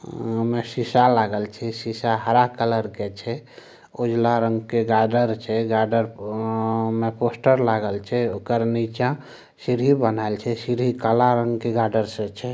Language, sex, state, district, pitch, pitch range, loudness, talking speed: Maithili, male, Bihar, Samastipur, 115 Hz, 110-120 Hz, -22 LUFS, 155 wpm